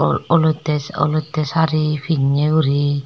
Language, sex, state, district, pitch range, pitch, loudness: Chakma, female, Tripura, Dhalai, 145-155 Hz, 155 Hz, -18 LUFS